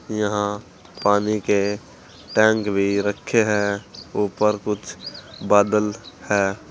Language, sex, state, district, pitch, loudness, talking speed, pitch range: Hindi, male, Uttar Pradesh, Saharanpur, 105 Hz, -21 LUFS, 100 wpm, 100-105 Hz